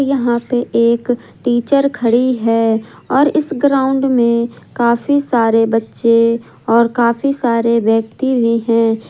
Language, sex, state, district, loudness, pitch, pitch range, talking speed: Hindi, female, Jharkhand, Ranchi, -14 LUFS, 235 Hz, 230-265 Hz, 125 wpm